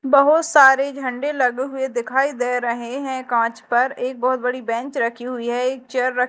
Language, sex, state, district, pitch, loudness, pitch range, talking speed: Hindi, female, Madhya Pradesh, Dhar, 255 Hz, -20 LUFS, 245-270 Hz, 200 wpm